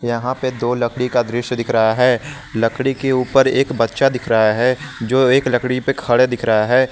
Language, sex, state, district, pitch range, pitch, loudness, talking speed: Hindi, male, Jharkhand, Garhwa, 120-130 Hz, 125 Hz, -17 LUFS, 215 wpm